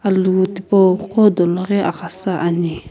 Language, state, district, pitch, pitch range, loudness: Sumi, Nagaland, Kohima, 185 Hz, 175-195 Hz, -16 LUFS